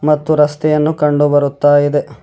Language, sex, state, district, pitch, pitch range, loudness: Kannada, male, Karnataka, Bidar, 145 Hz, 145-150 Hz, -13 LUFS